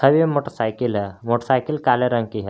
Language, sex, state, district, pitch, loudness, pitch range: Hindi, male, Jharkhand, Garhwa, 120 Hz, -21 LUFS, 110-135 Hz